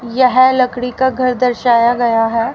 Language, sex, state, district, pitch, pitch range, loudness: Hindi, female, Haryana, Rohtak, 250 Hz, 235-255 Hz, -13 LUFS